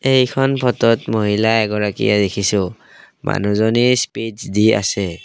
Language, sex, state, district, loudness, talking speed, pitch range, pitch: Assamese, male, Assam, Kamrup Metropolitan, -17 LUFS, 105 wpm, 100-125 Hz, 110 Hz